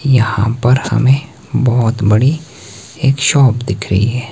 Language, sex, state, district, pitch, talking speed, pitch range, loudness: Hindi, male, Himachal Pradesh, Shimla, 120 Hz, 140 wpm, 110-135 Hz, -13 LUFS